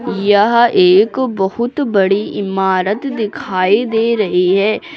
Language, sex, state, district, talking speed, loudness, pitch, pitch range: Hindi, female, Uttar Pradesh, Lucknow, 110 wpm, -14 LUFS, 210 Hz, 195-240 Hz